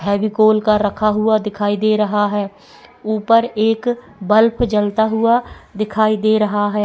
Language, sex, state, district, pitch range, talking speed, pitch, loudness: Hindi, female, Goa, North and South Goa, 210-220 Hz, 155 wpm, 215 Hz, -16 LUFS